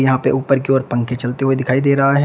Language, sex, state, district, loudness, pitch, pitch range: Hindi, male, Uttar Pradesh, Shamli, -17 LUFS, 135 Hz, 130-135 Hz